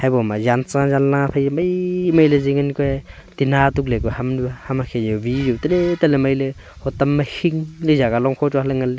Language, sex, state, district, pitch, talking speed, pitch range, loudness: Wancho, male, Arunachal Pradesh, Longding, 140 Hz, 185 wpm, 130-145 Hz, -19 LUFS